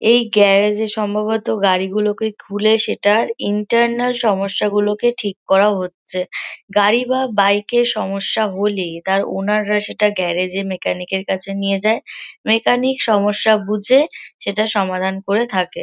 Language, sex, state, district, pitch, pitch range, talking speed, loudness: Bengali, female, West Bengal, Kolkata, 210 Hz, 195-220 Hz, 145 wpm, -17 LUFS